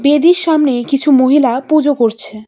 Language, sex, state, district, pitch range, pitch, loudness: Bengali, female, West Bengal, Cooch Behar, 245-300 Hz, 280 Hz, -12 LUFS